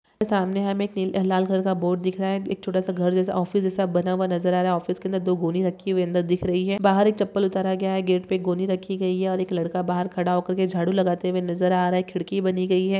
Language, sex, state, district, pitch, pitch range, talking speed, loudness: Hindi, female, West Bengal, Paschim Medinipur, 185 Hz, 180-190 Hz, 295 wpm, -23 LUFS